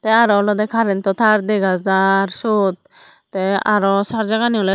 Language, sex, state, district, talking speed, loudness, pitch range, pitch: Chakma, female, Tripura, Dhalai, 150 wpm, -17 LUFS, 195-220 Hz, 205 Hz